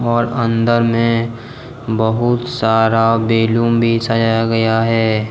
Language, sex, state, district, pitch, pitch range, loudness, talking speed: Hindi, male, Jharkhand, Deoghar, 115 Hz, 115-120 Hz, -15 LUFS, 115 wpm